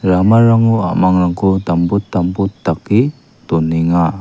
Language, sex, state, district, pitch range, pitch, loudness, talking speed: Garo, male, Meghalaya, West Garo Hills, 85-105 Hz, 95 Hz, -14 LUFS, 85 wpm